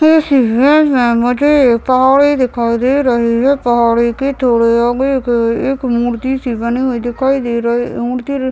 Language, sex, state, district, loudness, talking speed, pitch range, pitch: Hindi, male, Chhattisgarh, Raigarh, -13 LUFS, 170 wpm, 235-270 Hz, 250 Hz